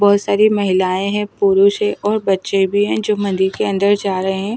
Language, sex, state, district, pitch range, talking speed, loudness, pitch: Hindi, female, Delhi, New Delhi, 190-210 Hz, 225 wpm, -16 LUFS, 200 Hz